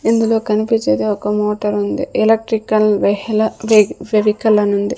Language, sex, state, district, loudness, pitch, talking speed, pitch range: Telugu, female, Andhra Pradesh, Sri Satya Sai, -15 LUFS, 215 Hz, 120 wpm, 210-220 Hz